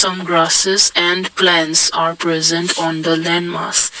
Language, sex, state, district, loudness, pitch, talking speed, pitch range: English, male, Assam, Kamrup Metropolitan, -14 LUFS, 170 Hz, 135 wpm, 165-180 Hz